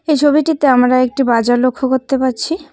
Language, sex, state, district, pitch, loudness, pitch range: Bengali, female, West Bengal, Cooch Behar, 260 Hz, -14 LUFS, 255-295 Hz